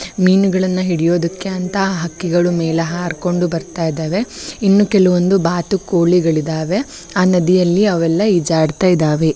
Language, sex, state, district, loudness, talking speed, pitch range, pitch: Kannada, female, Karnataka, Bellary, -15 LUFS, 110 wpm, 170-190 Hz, 175 Hz